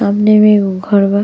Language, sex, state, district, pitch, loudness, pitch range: Bhojpuri, female, Uttar Pradesh, Deoria, 205 Hz, -11 LUFS, 200-210 Hz